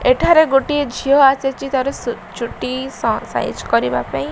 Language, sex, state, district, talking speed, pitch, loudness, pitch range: Odia, female, Odisha, Malkangiri, 125 wpm, 270 Hz, -17 LUFS, 255-275 Hz